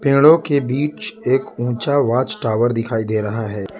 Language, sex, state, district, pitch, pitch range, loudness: Hindi, male, Gujarat, Valsad, 120 Hz, 110-140 Hz, -18 LUFS